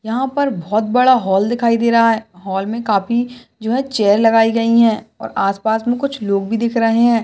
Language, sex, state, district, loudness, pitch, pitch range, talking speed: Hindi, female, Maharashtra, Solapur, -16 LUFS, 230 Hz, 215-240 Hz, 225 wpm